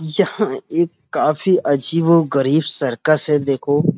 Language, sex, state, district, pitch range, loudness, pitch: Hindi, male, Uttar Pradesh, Muzaffarnagar, 145-170 Hz, -16 LUFS, 155 Hz